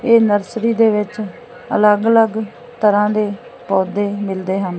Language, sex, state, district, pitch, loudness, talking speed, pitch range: Punjabi, female, Punjab, Fazilka, 215 Hz, -16 LUFS, 125 wpm, 205-230 Hz